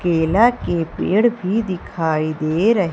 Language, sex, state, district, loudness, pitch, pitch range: Hindi, female, Madhya Pradesh, Umaria, -18 LUFS, 180 Hz, 160-215 Hz